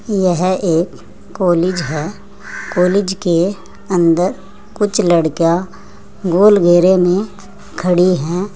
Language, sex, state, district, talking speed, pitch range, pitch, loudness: Hindi, female, Uttar Pradesh, Saharanpur, 100 wpm, 175-195 Hz, 180 Hz, -14 LUFS